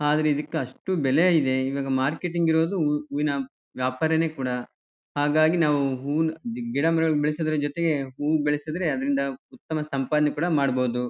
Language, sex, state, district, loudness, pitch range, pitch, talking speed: Kannada, male, Karnataka, Chamarajanagar, -25 LUFS, 135-160 Hz, 150 Hz, 140 wpm